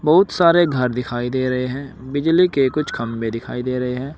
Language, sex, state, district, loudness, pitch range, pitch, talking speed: Hindi, male, Uttar Pradesh, Saharanpur, -19 LUFS, 125-150 Hz, 130 Hz, 215 wpm